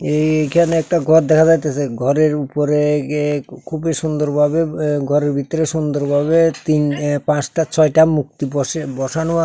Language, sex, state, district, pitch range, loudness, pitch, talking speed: Bengali, male, Tripura, South Tripura, 145-160 Hz, -16 LUFS, 150 Hz, 145 wpm